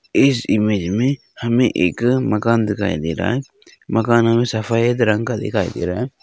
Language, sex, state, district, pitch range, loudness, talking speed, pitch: Hindi, male, Uttarakhand, Uttarkashi, 105-120 Hz, -18 LUFS, 175 wpm, 115 Hz